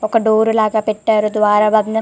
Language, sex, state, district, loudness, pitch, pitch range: Telugu, female, Telangana, Karimnagar, -14 LUFS, 215 Hz, 215-220 Hz